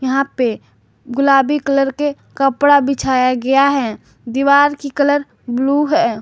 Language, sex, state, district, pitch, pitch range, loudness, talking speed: Hindi, female, Jharkhand, Garhwa, 275 Hz, 260-285 Hz, -15 LUFS, 135 wpm